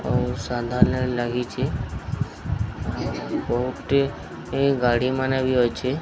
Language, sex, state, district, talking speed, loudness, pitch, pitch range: Odia, male, Odisha, Sambalpur, 80 wpm, -24 LUFS, 130 Hz, 120-130 Hz